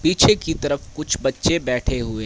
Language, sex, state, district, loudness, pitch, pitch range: Hindi, male, Haryana, Rohtak, -20 LUFS, 140 Hz, 125-160 Hz